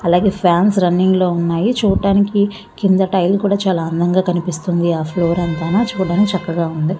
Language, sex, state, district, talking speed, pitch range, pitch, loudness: Telugu, female, Andhra Pradesh, Visakhapatnam, 145 wpm, 170-200 Hz, 185 Hz, -16 LUFS